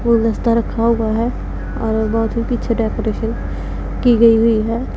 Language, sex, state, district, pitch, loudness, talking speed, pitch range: Hindi, female, Punjab, Pathankot, 230 Hz, -17 LUFS, 145 wpm, 225-235 Hz